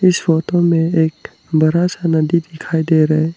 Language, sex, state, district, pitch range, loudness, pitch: Hindi, male, Arunachal Pradesh, Lower Dibang Valley, 160-170 Hz, -16 LUFS, 165 Hz